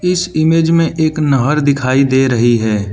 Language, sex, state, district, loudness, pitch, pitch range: Hindi, male, Arunachal Pradesh, Lower Dibang Valley, -13 LUFS, 145 Hz, 130-160 Hz